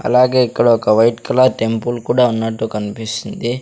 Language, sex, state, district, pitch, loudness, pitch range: Telugu, male, Andhra Pradesh, Sri Satya Sai, 115 Hz, -16 LUFS, 110-125 Hz